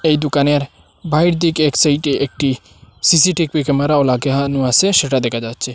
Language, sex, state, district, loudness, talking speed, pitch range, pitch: Bengali, male, Assam, Hailakandi, -15 LUFS, 145 wpm, 130-155 Hz, 140 Hz